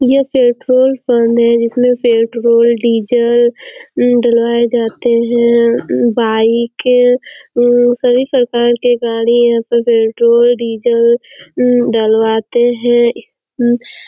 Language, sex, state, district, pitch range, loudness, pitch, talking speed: Hindi, female, Chhattisgarh, Korba, 235-245 Hz, -12 LUFS, 240 Hz, 100 wpm